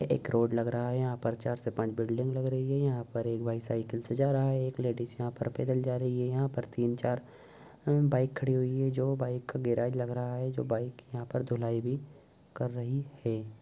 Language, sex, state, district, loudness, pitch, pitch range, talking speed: Hindi, male, Bihar, Gopalganj, -32 LUFS, 125 Hz, 120-130 Hz, 240 wpm